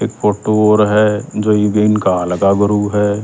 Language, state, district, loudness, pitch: Haryanvi, Haryana, Rohtak, -14 LUFS, 105 Hz